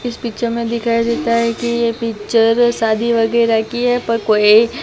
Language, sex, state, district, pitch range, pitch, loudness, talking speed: Hindi, female, Gujarat, Gandhinagar, 225-235 Hz, 230 Hz, -15 LUFS, 185 wpm